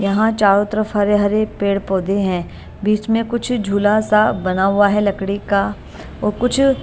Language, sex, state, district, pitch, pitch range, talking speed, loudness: Hindi, female, Bihar, Katihar, 205 Hz, 195-215 Hz, 175 wpm, -17 LUFS